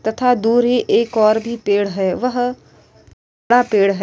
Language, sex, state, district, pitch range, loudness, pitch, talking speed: Hindi, female, Uttar Pradesh, Etah, 205-245 Hz, -16 LUFS, 230 Hz, 150 wpm